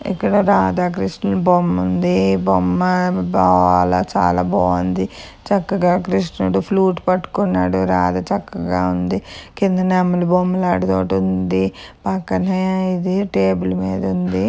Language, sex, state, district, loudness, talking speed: Telugu, female, Telangana, Karimnagar, -17 LUFS, 105 wpm